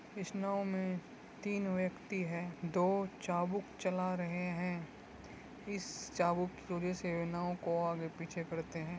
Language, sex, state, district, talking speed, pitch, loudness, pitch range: Hindi, male, Uttar Pradesh, Muzaffarnagar, 135 wpm, 180 Hz, -38 LUFS, 170-195 Hz